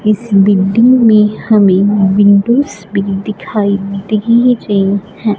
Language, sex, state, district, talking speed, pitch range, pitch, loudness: Hindi, female, Punjab, Fazilka, 110 wpm, 200-215 Hz, 205 Hz, -11 LUFS